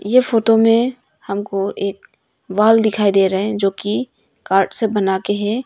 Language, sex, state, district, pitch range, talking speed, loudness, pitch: Hindi, female, Arunachal Pradesh, Longding, 195-225 Hz, 180 wpm, -17 LUFS, 205 Hz